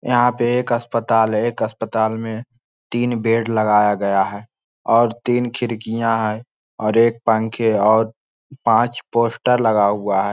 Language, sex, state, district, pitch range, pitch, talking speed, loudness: Hindi, male, Jharkhand, Sahebganj, 110-120 Hz, 115 Hz, 150 wpm, -18 LUFS